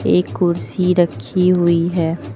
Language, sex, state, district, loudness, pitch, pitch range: Hindi, female, Uttar Pradesh, Lucknow, -17 LUFS, 175 Hz, 165-180 Hz